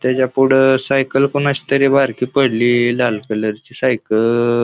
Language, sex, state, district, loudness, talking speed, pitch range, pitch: Marathi, male, Maharashtra, Pune, -15 LUFS, 155 wpm, 120-135 Hz, 130 Hz